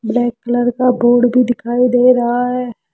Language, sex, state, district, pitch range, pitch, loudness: Hindi, female, Rajasthan, Jaipur, 240-250 Hz, 245 Hz, -14 LUFS